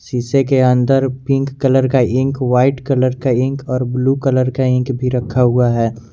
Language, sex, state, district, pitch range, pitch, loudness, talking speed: Hindi, male, Jharkhand, Garhwa, 125-135 Hz, 130 Hz, -15 LUFS, 195 wpm